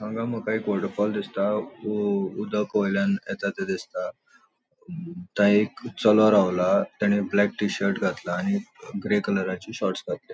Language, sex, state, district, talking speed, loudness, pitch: Konkani, male, Goa, North and South Goa, 145 wpm, -25 LUFS, 105 Hz